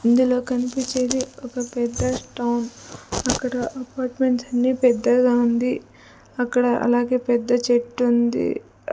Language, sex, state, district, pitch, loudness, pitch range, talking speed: Telugu, female, Andhra Pradesh, Sri Satya Sai, 245 Hz, -22 LUFS, 240-255 Hz, 95 wpm